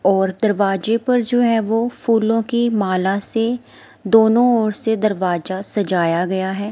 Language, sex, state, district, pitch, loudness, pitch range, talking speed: Hindi, female, Himachal Pradesh, Shimla, 215 Hz, -18 LUFS, 190-230 Hz, 150 wpm